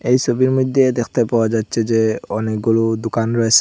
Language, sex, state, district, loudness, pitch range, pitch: Bengali, male, Assam, Hailakandi, -17 LUFS, 115-125 Hz, 115 Hz